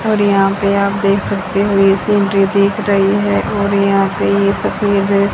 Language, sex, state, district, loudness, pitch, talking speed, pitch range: Hindi, female, Haryana, Jhajjar, -14 LUFS, 200 Hz, 190 wpm, 195-205 Hz